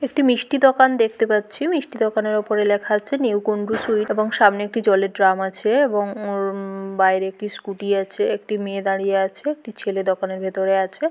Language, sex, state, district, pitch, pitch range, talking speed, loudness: Bengali, female, West Bengal, Jhargram, 210 Hz, 195-225 Hz, 195 wpm, -20 LUFS